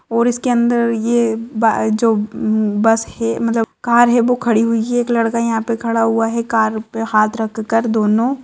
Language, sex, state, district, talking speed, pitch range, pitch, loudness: Hindi, female, Maharashtra, Solapur, 200 wpm, 225-235 Hz, 230 Hz, -16 LUFS